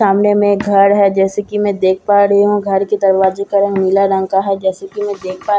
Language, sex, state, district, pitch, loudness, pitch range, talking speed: Hindi, female, Bihar, Katihar, 200 Hz, -13 LUFS, 195-205 Hz, 290 wpm